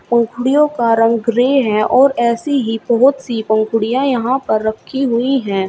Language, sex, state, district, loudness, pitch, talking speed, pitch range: Hindi, female, Uttar Pradesh, Shamli, -15 LUFS, 235 Hz, 170 wpm, 225-265 Hz